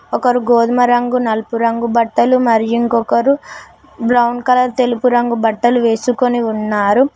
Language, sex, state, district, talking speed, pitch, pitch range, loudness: Telugu, female, Telangana, Mahabubabad, 125 wpm, 240 Hz, 230-245 Hz, -14 LUFS